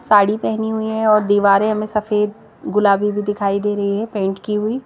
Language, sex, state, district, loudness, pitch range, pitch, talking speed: Hindi, female, Madhya Pradesh, Bhopal, -18 LUFS, 200-215 Hz, 210 Hz, 210 wpm